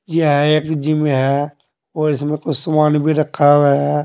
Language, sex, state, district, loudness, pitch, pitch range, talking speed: Hindi, male, Uttar Pradesh, Saharanpur, -16 LUFS, 150 Hz, 145-155 Hz, 175 wpm